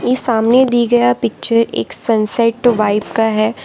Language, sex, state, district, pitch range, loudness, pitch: Hindi, female, Gujarat, Valsad, 215-240 Hz, -13 LUFS, 230 Hz